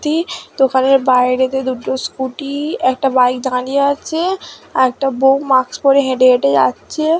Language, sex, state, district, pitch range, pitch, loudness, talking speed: Bengali, female, West Bengal, Dakshin Dinajpur, 255-280 Hz, 265 Hz, -15 LUFS, 140 wpm